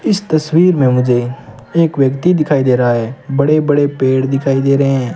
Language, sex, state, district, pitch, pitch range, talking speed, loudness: Hindi, male, Rajasthan, Bikaner, 135 Hz, 130-155 Hz, 185 wpm, -13 LUFS